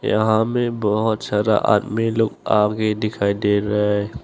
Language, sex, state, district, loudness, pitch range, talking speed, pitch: Hindi, male, Arunachal Pradesh, Longding, -19 LUFS, 105-110 Hz, 155 wpm, 105 Hz